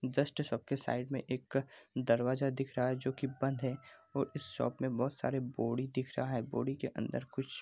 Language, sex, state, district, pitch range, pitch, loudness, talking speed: Hindi, male, Bihar, Araria, 125-135 Hz, 130 Hz, -37 LUFS, 230 wpm